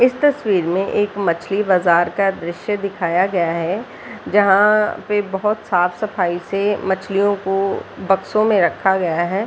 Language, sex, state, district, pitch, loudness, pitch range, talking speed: Hindi, female, Bihar, Jahanabad, 195 Hz, -18 LUFS, 180-205 Hz, 145 wpm